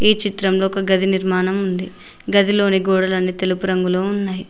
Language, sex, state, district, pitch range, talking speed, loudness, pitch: Telugu, female, Telangana, Mahabubabad, 185-195 Hz, 135 wpm, -18 LUFS, 190 Hz